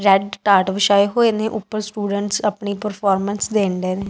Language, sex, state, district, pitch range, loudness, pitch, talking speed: Punjabi, female, Punjab, Kapurthala, 195-210 Hz, -19 LUFS, 200 Hz, 160 wpm